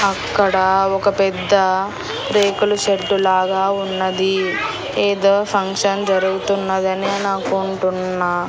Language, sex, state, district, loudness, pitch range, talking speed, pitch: Telugu, female, Andhra Pradesh, Annamaya, -17 LUFS, 190-200 Hz, 90 wpm, 195 Hz